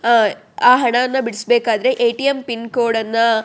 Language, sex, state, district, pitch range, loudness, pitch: Kannada, female, Karnataka, Shimoga, 230-250 Hz, -16 LUFS, 235 Hz